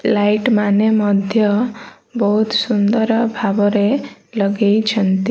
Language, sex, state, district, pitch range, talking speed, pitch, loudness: Odia, female, Odisha, Malkangiri, 205-225 Hz, 80 wpm, 210 Hz, -16 LUFS